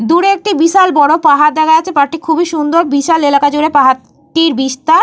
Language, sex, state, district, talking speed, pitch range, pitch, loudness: Bengali, female, Jharkhand, Jamtara, 180 wpm, 285-330 Hz, 315 Hz, -11 LUFS